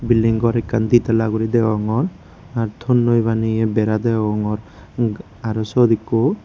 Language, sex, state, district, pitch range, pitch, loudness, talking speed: Chakma, male, Tripura, Unakoti, 110-115 Hz, 115 Hz, -19 LUFS, 130 wpm